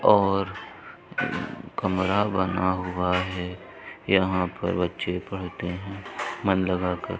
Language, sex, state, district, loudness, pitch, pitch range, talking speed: Hindi, male, Uttar Pradesh, Budaun, -26 LUFS, 95 Hz, 90-95 Hz, 115 wpm